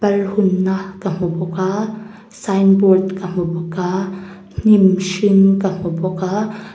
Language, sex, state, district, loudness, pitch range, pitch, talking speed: Mizo, female, Mizoram, Aizawl, -17 LUFS, 185-200 Hz, 190 Hz, 160 wpm